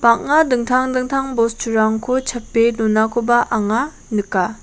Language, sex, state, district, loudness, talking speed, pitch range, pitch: Garo, female, Meghalaya, West Garo Hills, -17 LUFS, 105 wpm, 220-255 Hz, 235 Hz